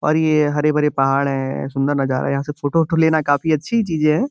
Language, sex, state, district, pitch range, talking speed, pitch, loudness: Hindi, male, Uttar Pradesh, Gorakhpur, 140-160 Hz, 250 wpm, 150 Hz, -18 LUFS